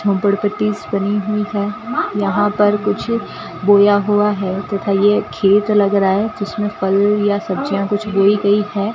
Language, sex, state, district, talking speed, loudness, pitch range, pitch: Hindi, female, Rajasthan, Bikaner, 170 wpm, -16 LUFS, 200-210 Hz, 205 Hz